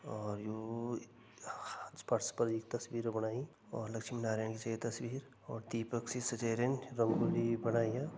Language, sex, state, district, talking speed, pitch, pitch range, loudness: Garhwali, male, Uttarakhand, Tehri Garhwal, 170 wpm, 115 Hz, 115-120 Hz, -38 LUFS